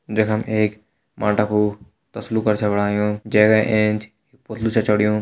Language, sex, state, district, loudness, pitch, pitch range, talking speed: Hindi, male, Uttarakhand, Tehri Garhwal, -19 LUFS, 105 Hz, 105-110 Hz, 185 wpm